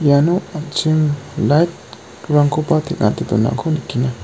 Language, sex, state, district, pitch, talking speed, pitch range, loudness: Garo, male, Meghalaya, West Garo Hills, 155 Hz, 85 wpm, 140-160 Hz, -17 LUFS